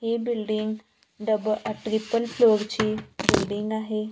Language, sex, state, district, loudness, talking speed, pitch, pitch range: Marathi, female, Maharashtra, Gondia, -25 LUFS, 115 wpm, 215 Hz, 215-225 Hz